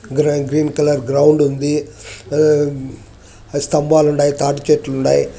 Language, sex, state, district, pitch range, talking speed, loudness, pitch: Telugu, male, Andhra Pradesh, Anantapur, 135-150 Hz, 135 wpm, -15 LUFS, 145 Hz